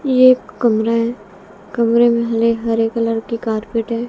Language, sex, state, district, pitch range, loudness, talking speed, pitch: Hindi, female, Bihar, West Champaran, 225-235 Hz, -16 LUFS, 175 wpm, 230 Hz